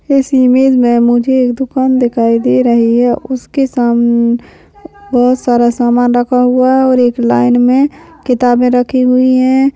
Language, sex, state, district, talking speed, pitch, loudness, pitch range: Hindi, female, Maharashtra, Solapur, 155 wpm, 250 Hz, -10 LUFS, 240-260 Hz